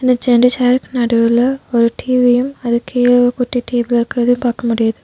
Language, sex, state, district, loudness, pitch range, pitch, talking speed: Tamil, female, Tamil Nadu, Nilgiris, -14 LUFS, 235-250 Hz, 245 Hz, 165 wpm